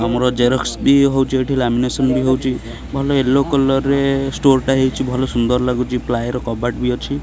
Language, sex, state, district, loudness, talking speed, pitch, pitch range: Odia, male, Odisha, Khordha, -17 LUFS, 185 wpm, 130 Hz, 125-135 Hz